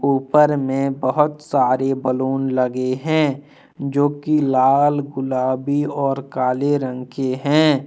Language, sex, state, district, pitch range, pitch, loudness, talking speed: Hindi, male, Jharkhand, Deoghar, 130-145 Hz, 135 Hz, -19 LUFS, 120 wpm